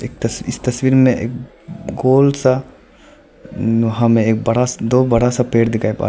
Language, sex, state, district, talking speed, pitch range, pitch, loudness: Hindi, male, Arunachal Pradesh, Lower Dibang Valley, 150 wpm, 115-130 Hz, 125 Hz, -16 LUFS